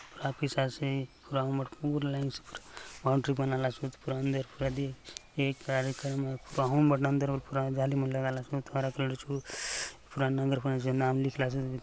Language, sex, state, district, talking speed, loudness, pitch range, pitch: Halbi, male, Chhattisgarh, Bastar, 120 wpm, -32 LUFS, 130-140 Hz, 135 Hz